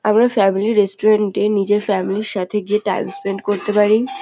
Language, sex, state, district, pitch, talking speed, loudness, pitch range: Bengali, female, West Bengal, North 24 Parganas, 210 Hz, 185 wpm, -17 LUFS, 195-215 Hz